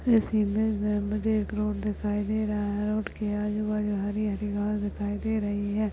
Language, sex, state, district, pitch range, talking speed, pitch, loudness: Hindi, male, Uttarakhand, Tehri Garhwal, 205-215 Hz, 210 wpm, 210 Hz, -28 LUFS